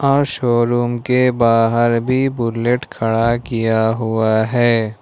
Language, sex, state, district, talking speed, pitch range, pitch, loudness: Hindi, male, Jharkhand, Ranchi, 120 wpm, 115-125 Hz, 120 Hz, -16 LUFS